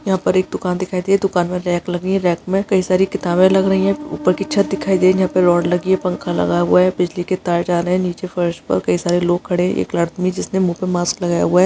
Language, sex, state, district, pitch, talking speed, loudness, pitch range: Hindi, female, Bihar, Araria, 180 Hz, 295 wpm, -17 LUFS, 175-185 Hz